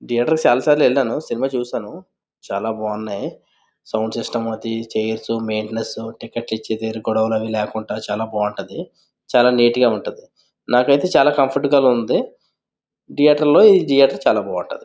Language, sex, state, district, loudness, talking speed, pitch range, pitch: Telugu, male, Andhra Pradesh, Visakhapatnam, -18 LUFS, 155 wpm, 110-135 Hz, 115 Hz